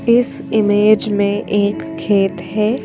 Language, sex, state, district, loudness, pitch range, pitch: Hindi, female, Madhya Pradesh, Bhopal, -16 LUFS, 200-215 Hz, 205 Hz